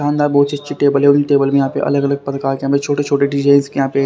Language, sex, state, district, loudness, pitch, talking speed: Hindi, male, Haryana, Rohtak, -15 LUFS, 140 Hz, 265 wpm